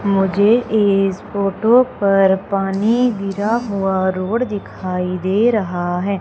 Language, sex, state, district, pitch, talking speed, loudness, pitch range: Hindi, female, Madhya Pradesh, Umaria, 200 Hz, 115 wpm, -17 LUFS, 190-215 Hz